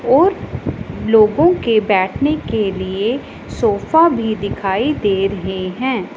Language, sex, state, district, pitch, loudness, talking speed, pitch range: Hindi, female, Punjab, Pathankot, 220 Hz, -16 LUFS, 115 wpm, 195-275 Hz